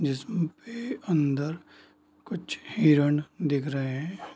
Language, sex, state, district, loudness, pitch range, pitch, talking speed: Hindi, male, Bihar, Darbhanga, -28 LUFS, 140-170 Hz, 150 Hz, 110 wpm